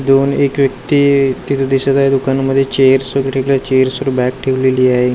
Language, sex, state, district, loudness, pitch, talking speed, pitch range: Marathi, male, Maharashtra, Gondia, -13 LUFS, 135 Hz, 175 wpm, 130-135 Hz